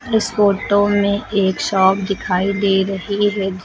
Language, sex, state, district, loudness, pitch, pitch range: Hindi, female, Uttar Pradesh, Lucknow, -17 LUFS, 200 Hz, 195-205 Hz